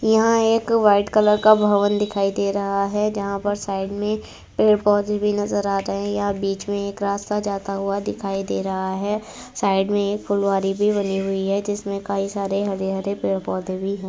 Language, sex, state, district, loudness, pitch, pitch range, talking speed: Hindi, female, Uttar Pradesh, Budaun, -21 LUFS, 200 Hz, 195-205 Hz, 205 wpm